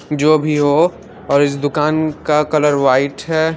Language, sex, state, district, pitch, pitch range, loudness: Hindi, female, Haryana, Charkhi Dadri, 150 Hz, 145-155 Hz, -15 LUFS